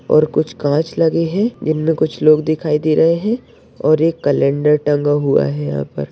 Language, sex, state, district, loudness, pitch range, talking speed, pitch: Hindi, male, Maharashtra, Solapur, -16 LUFS, 145-160 Hz, 205 wpm, 155 Hz